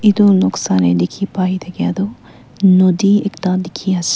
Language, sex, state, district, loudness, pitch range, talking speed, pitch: Nagamese, female, Nagaland, Kohima, -15 LUFS, 180-200 Hz, 145 wpm, 185 Hz